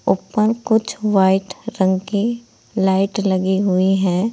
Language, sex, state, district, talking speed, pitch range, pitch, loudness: Hindi, female, Uttar Pradesh, Saharanpur, 125 wpm, 190-215 Hz, 195 Hz, -18 LUFS